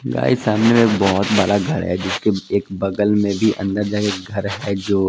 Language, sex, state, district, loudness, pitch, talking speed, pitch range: Hindi, male, Punjab, Kapurthala, -18 LUFS, 100 Hz, 200 wpm, 95-105 Hz